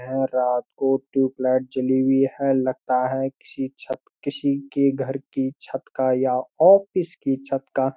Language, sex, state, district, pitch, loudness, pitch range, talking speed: Hindi, male, Uttarakhand, Uttarkashi, 135 Hz, -22 LUFS, 130-135 Hz, 175 wpm